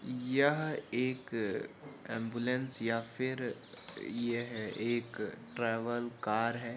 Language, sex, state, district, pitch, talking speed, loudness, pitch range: Hindi, male, Uttar Pradesh, Jyotiba Phule Nagar, 120 Hz, 90 wpm, -35 LUFS, 115-125 Hz